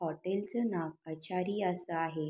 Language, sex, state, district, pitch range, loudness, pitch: Marathi, female, Maharashtra, Sindhudurg, 160-190 Hz, -35 LUFS, 175 Hz